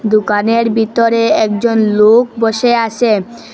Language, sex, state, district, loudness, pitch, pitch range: Bengali, female, Assam, Hailakandi, -12 LUFS, 225 Hz, 215-230 Hz